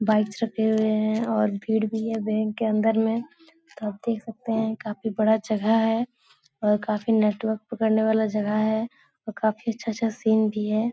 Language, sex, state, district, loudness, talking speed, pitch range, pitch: Hindi, female, Bihar, Jahanabad, -25 LUFS, 185 wpm, 215-225 Hz, 220 Hz